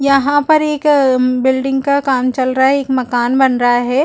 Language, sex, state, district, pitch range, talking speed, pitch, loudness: Hindi, female, Chhattisgarh, Bilaspur, 255-280 Hz, 235 wpm, 265 Hz, -13 LUFS